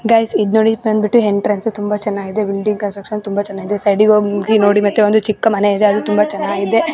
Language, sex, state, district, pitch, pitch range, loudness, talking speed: Kannada, female, Karnataka, Gulbarga, 210 Hz, 205-215 Hz, -15 LUFS, 190 wpm